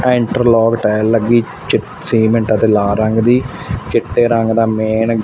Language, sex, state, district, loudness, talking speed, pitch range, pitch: Punjabi, male, Punjab, Fazilka, -14 LUFS, 150 wpm, 110-120 Hz, 115 Hz